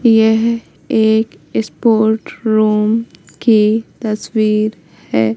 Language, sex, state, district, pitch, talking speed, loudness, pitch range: Hindi, female, Madhya Pradesh, Katni, 215 Hz, 80 wpm, -15 LUFS, 170-225 Hz